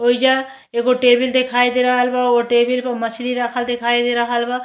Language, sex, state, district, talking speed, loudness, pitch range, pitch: Bhojpuri, female, Uttar Pradesh, Deoria, 205 wpm, -17 LUFS, 240-250 Hz, 245 Hz